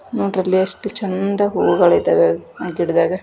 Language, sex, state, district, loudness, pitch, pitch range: Kannada, female, Karnataka, Dharwad, -17 LUFS, 190 Hz, 185-200 Hz